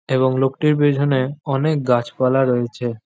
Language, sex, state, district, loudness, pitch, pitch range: Bengali, male, West Bengal, Jhargram, -18 LUFS, 135 Hz, 125-145 Hz